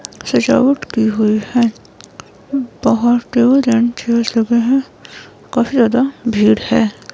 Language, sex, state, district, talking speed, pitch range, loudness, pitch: Hindi, female, Himachal Pradesh, Shimla, 110 wpm, 225-255 Hz, -15 LUFS, 235 Hz